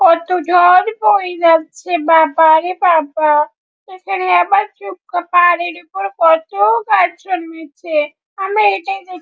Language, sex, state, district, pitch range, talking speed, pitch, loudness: Bengali, male, West Bengal, Jhargram, 330-390 Hz, 110 wpm, 355 Hz, -14 LUFS